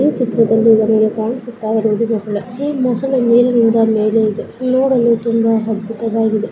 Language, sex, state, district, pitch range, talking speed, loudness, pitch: Kannada, female, Karnataka, Bellary, 220-240 Hz, 140 wpm, -15 LUFS, 225 Hz